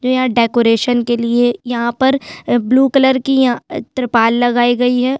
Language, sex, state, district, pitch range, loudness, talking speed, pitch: Hindi, female, Chhattisgarh, Sukma, 240-255 Hz, -14 LUFS, 185 wpm, 245 Hz